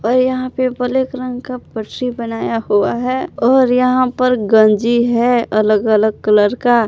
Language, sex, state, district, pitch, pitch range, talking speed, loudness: Hindi, female, Jharkhand, Palamu, 245 Hz, 220-255 Hz, 155 wpm, -15 LUFS